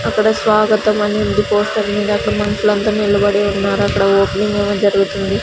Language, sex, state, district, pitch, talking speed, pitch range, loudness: Telugu, female, Andhra Pradesh, Sri Satya Sai, 205 Hz, 145 wpm, 200-210 Hz, -15 LUFS